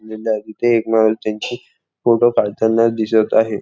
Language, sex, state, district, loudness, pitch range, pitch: Marathi, male, Maharashtra, Nagpur, -17 LUFS, 110-115 Hz, 110 Hz